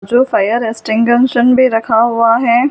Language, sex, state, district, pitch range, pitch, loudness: Hindi, female, Delhi, New Delhi, 230-250 Hz, 235 Hz, -12 LUFS